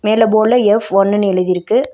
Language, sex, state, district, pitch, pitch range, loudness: Tamil, female, Tamil Nadu, Nilgiris, 210 Hz, 195-220 Hz, -13 LUFS